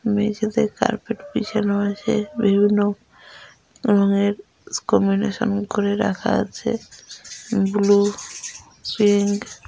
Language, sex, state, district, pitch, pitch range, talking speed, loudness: Bengali, female, West Bengal, Dakshin Dinajpur, 205 Hz, 200-215 Hz, 85 wpm, -21 LUFS